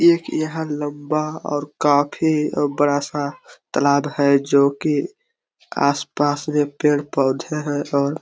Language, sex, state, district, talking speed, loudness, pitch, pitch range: Hindi, male, Chhattisgarh, Korba, 100 wpm, -20 LUFS, 145 Hz, 145-155 Hz